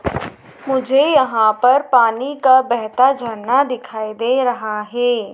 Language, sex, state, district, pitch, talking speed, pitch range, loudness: Hindi, female, Madhya Pradesh, Dhar, 245 Hz, 125 wpm, 225-260 Hz, -16 LUFS